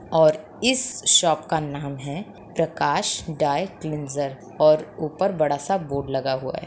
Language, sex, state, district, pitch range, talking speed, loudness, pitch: Hindi, female, Bihar, Begusarai, 145-175 Hz, 145 wpm, -22 LUFS, 155 Hz